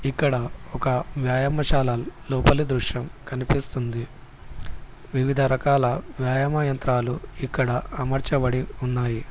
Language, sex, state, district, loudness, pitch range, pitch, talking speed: Telugu, male, Telangana, Hyderabad, -24 LUFS, 125-140 Hz, 130 Hz, 85 wpm